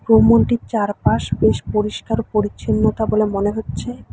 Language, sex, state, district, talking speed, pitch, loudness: Bengali, female, West Bengal, Alipurduar, 115 wpm, 205 Hz, -18 LUFS